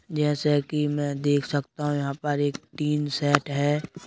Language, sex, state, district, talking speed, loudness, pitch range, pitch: Hindi, male, Madhya Pradesh, Bhopal, 175 wpm, -26 LUFS, 145-150 Hz, 145 Hz